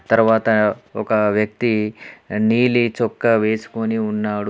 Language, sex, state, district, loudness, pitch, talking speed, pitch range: Telugu, male, Telangana, Adilabad, -19 LUFS, 110 Hz, 105 wpm, 105-115 Hz